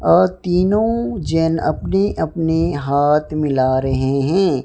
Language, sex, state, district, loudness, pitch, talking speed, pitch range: Hindi, male, Odisha, Sambalpur, -17 LUFS, 160 Hz, 115 wpm, 140-185 Hz